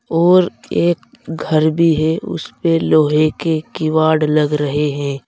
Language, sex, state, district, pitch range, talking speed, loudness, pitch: Hindi, male, Uttar Pradesh, Saharanpur, 150-165 Hz, 135 wpm, -16 LUFS, 155 Hz